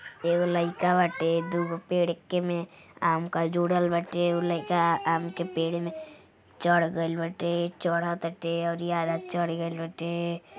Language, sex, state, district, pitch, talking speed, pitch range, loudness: Bhojpuri, female, Uttar Pradesh, Deoria, 170 Hz, 145 wpm, 165-175 Hz, -28 LUFS